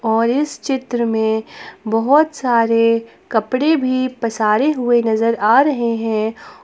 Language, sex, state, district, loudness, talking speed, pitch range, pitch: Hindi, female, Jharkhand, Palamu, -17 LUFS, 125 wpm, 225-270 Hz, 235 Hz